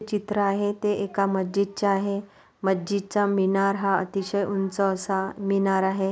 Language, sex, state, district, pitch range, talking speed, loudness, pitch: Marathi, female, Maharashtra, Pune, 195-200 Hz, 155 wpm, -25 LUFS, 195 Hz